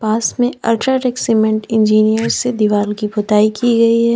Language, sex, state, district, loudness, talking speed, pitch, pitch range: Hindi, female, Uttar Pradesh, Lalitpur, -15 LUFS, 175 wpm, 225 Hz, 215-235 Hz